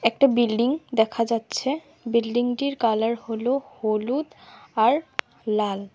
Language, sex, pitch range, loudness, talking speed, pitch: Bengali, female, 225-270 Hz, -24 LUFS, 100 wpm, 235 Hz